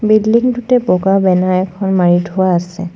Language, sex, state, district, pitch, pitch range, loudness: Assamese, female, Assam, Sonitpur, 190 Hz, 180-215 Hz, -13 LUFS